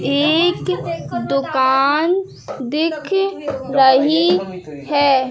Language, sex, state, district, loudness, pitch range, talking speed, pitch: Hindi, male, Madhya Pradesh, Katni, -17 LUFS, 185-305 Hz, 55 wpm, 270 Hz